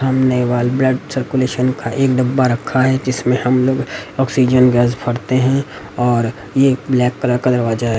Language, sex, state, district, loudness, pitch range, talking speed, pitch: Hindi, male, Haryana, Rohtak, -16 LUFS, 125-130 Hz, 160 wpm, 130 Hz